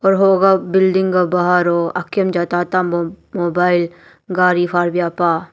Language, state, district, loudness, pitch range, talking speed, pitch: Nyishi, Arunachal Pradesh, Papum Pare, -16 LUFS, 175-185 Hz, 130 wpm, 180 Hz